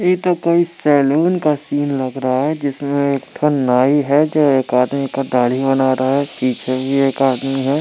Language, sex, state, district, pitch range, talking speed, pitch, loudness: Hindi, male, Bihar, Muzaffarpur, 130-150 Hz, 205 wpm, 140 Hz, -16 LUFS